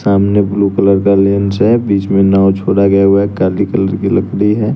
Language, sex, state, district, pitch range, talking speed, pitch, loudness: Hindi, male, Bihar, West Champaran, 95-100 Hz, 225 wpm, 100 Hz, -12 LUFS